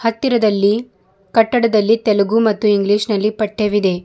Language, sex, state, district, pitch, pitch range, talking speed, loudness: Kannada, female, Karnataka, Bidar, 215 Hz, 205-225 Hz, 105 wpm, -16 LUFS